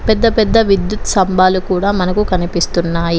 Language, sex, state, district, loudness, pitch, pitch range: Telugu, female, Telangana, Komaram Bheem, -14 LUFS, 185 Hz, 180-210 Hz